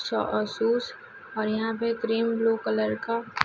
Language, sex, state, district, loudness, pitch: Hindi, female, Chhattisgarh, Raipur, -27 LUFS, 225 Hz